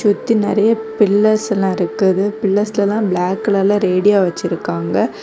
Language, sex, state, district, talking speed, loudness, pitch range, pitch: Tamil, female, Tamil Nadu, Kanyakumari, 115 wpm, -16 LUFS, 190-210 Hz, 200 Hz